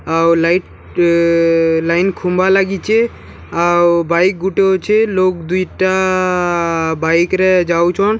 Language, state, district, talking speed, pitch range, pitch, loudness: Sambalpuri, Odisha, Sambalpur, 170 wpm, 170-190 Hz, 180 Hz, -14 LUFS